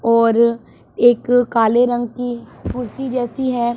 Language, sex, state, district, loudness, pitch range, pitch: Hindi, female, Punjab, Pathankot, -17 LUFS, 235-245 Hz, 240 Hz